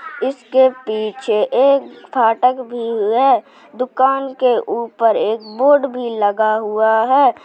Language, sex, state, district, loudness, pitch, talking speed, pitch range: Hindi, male, Uttar Pradesh, Jalaun, -16 LUFS, 245 Hz, 130 wpm, 220-265 Hz